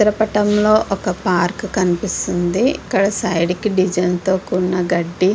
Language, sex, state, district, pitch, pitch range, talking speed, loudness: Telugu, female, Andhra Pradesh, Visakhapatnam, 190 Hz, 180-210 Hz, 145 wpm, -17 LUFS